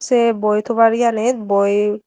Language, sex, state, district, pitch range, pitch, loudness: Chakma, female, Tripura, Dhalai, 210-235 Hz, 220 Hz, -16 LUFS